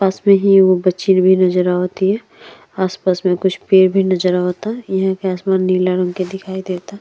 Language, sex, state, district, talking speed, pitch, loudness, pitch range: Bhojpuri, female, Uttar Pradesh, Deoria, 195 wpm, 185 Hz, -15 LUFS, 185-190 Hz